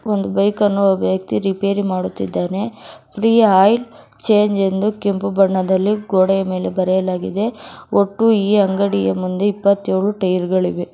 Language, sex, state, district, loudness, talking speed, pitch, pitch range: Kannada, female, Karnataka, Bangalore, -17 LUFS, 120 wpm, 195 Hz, 185-205 Hz